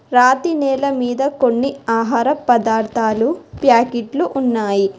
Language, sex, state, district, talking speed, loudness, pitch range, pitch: Telugu, female, Telangana, Hyderabad, 95 wpm, -16 LUFS, 230-275 Hz, 245 Hz